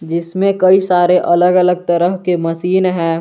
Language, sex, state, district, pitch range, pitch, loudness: Hindi, male, Jharkhand, Garhwa, 170-185 Hz, 180 Hz, -13 LUFS